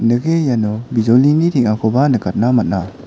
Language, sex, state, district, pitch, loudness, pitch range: Garo, male, Meghalaya, West Garo Hills, 120 Hz, -15 LUFS, 110-135 Hz